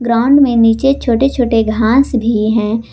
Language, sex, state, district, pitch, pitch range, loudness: Hindi, female, Jharkhand, Garhwa, 235 Hz, 225-265 Hz, -12 LUFS